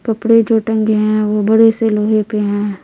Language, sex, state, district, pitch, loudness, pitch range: Hindi, female, Bihar, Patna, 215 Hz, -14 LUFS, 210-225 Hz